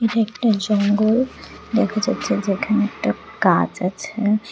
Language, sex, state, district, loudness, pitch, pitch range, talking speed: Bengali, female, Tripura, West Tripura, -20 LUFS, 215 Hz, 210-230 Hz, 105 wpm